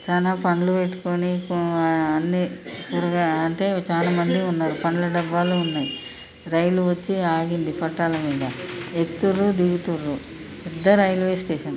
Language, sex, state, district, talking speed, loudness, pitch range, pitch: Telugu, female, Andhra Pradesh, Krishna, 115 wpm, -22 LUFS, 165-180 Hz, 175 Hz